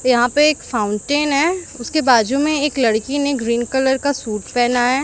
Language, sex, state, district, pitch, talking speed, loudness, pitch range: Hindi, female, Chhattisgarh, Raipur, 265 Hz, 200 wpm, -17 LUFS, 240-290 Hz